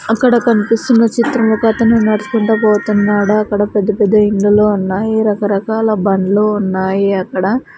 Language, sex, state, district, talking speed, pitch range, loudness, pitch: Telugu, female, Andhra Pradesh, Sri Satya Sai, 125 wpm, 205-225 Hz, -13 LUFS, 210 Hz